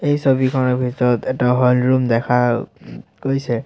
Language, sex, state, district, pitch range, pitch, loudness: Assamese, male, Assam, Sonitpur, 125-130 Hz, 125 Hz, -17 LUFS